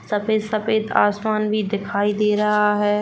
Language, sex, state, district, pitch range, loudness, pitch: Hindi, female, Uttar Pradesh, Jalaun, 205-215 Hz, -20 LUFS, 210 Hz